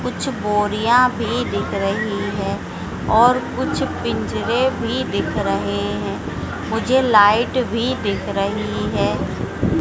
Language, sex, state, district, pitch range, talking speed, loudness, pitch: Hindi, female, Madhya Pradesh, Dhar, 200-245 Hz, 115 wpm, -19 LUFS, 220 Hz